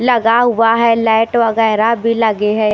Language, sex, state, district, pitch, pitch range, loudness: Hindi, female, Chhattisgarh, Raipur, 225 Hz, 220-230 Hz, -13 LUFS